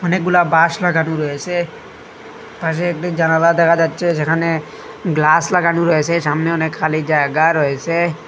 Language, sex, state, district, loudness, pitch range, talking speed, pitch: Bengali, male, Assam, Hailakandi, -16 LUFS, 155-170 Hz, 130 wpm, 165 Hz